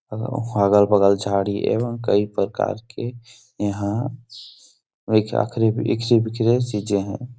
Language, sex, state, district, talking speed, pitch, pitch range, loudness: Hindi, male, Uttar Pradesh, Etah, 80 wpm, 110 Hz, 100-120 Hz, -21 LUFS